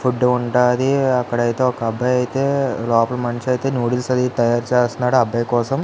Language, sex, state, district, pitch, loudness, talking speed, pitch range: Telugu, male, Andhra Pradesh, Visakhapatnam, 125 Hz, -18 LUFS, 185 wpm, 120-130 Hz